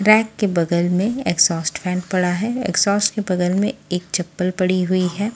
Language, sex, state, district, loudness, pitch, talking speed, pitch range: Hindi, female, Haryana, Charkhi Dadri, -19 LUFS, 185 Hz, 190 wpm, 180-205 Hz